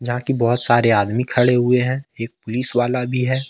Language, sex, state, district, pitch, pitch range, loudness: Hindi, male, Jharkhand, Ranchi, 125 Hz, 120-125 Hz, -18 LUFS